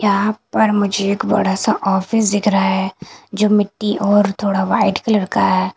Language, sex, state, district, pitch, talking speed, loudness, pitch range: Hindi, female, Punjab, Kapurthala, 205 Hz, 185 wpm, -16 LUFS, 195-210 Hz